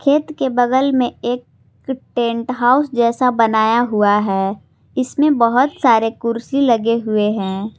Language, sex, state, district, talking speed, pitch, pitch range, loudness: Hindi, female, Jharkhand, Palamu, 140 wpm, 235 Hz, 220-260 Hz, -16 LUFS